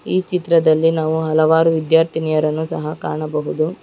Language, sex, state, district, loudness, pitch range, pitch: Kannada, female, Karnataka, Bangalore, -17 LUFS, 155-165 Hz, 160 Hz